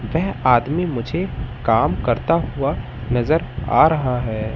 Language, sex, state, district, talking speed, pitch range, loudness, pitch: Hindi, male, Madhya Pradesh, Katni, 130 wpm, 120-160 Hz, -20 LUFS, 125 Hz